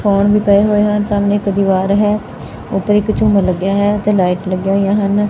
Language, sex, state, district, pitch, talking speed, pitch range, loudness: Punjabi, female, Punjab, Fazilka, 200 Hz, 215 wpm, 195-210 Hz, -14 LUFS